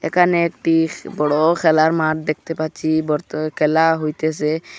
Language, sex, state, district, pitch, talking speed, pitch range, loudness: Bengali, male, Assam, Hailakandi, 155 Hz, 125 wpm, 155-165 Hz, -18 LUFS